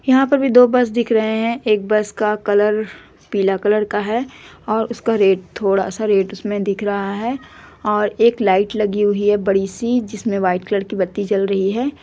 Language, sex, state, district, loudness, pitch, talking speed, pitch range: Hindi, female, Jharkhand, Sahebganj, -18 LUFS, 210 Hz, 200 wpm, 200-230 Hz